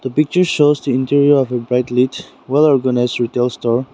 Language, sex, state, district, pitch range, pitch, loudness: English, male, Nagaland, Dimapur, 125-145 Hz, 130 Hz, -15 LUFS